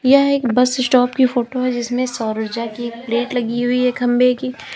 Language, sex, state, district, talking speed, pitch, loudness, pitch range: Hindi, female, Uttar Pradesh, Lalitpur, 215 wpm, 245 Hz, -18 LUFS, 235-255 Hz